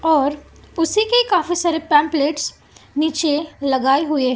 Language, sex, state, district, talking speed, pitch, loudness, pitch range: Hindi, female, Maharashtra, Gondia, 125 wpm, 310 Hz, -18 LUFS, 290-330 Hz